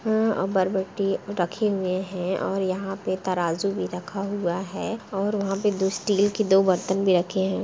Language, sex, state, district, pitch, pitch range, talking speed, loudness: Hindi, female, Uttar Pradesh, Jalaun, 195 Hz, 185-200 Hz, 190 wpm, -25 LUFS